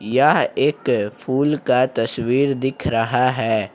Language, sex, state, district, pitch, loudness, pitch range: Hindi, male, Jharkhand, Ranchi, 125 Hz, -19 LUFS, 115-130 Hz